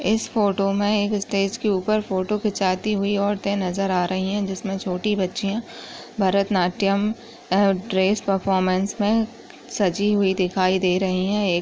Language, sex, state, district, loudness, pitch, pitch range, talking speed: Hindi, female, Chhattisgarh, Sukma, -22 LUFS, 195 Hz, 190-210 Hz, 145 wpm